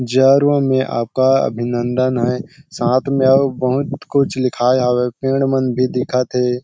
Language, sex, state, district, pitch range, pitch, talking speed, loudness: Chhattisgarhi, male, Chhattisgarh, Sarguja, 125-135 Hz, 130 Hz, 165 wpm, -16 LUFS